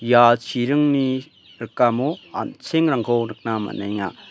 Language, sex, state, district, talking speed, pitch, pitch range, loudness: Garo, male, Meghalaya, West Garo Hills, 85 wpm, 120 Hz, 110-135 Hz, -21 LUFS